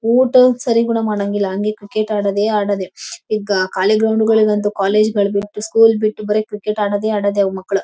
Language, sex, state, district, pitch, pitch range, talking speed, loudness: Kannada, female, Karnataka, Bellary, 210 Hz, 200-220 Hz, 155 wpm, -16 LUFS